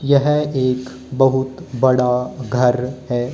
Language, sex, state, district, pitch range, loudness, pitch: Hindi, female, Haryana, Jhajjar, 125-130 Hz, -18 LUFS, 130 Hz